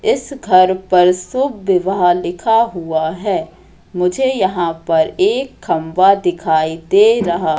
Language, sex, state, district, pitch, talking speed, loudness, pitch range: Hindi, female, Madhya Pradesh, Katni, 185 Hz, 125 wpm, -15 LUFS, 170-215 Hz